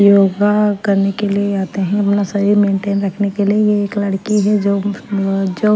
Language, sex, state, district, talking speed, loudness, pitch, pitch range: Hindi, female, Bihar, Patna, 190 wpm, -15 LUFS, 200 Hz, 195-205 Hz